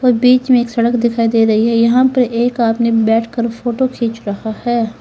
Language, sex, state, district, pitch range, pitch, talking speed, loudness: Hindi, female, Uttar Pradesh, Lalitpur, 225-245 Hz, 235 Hz, 225 wpm, -14 LUFS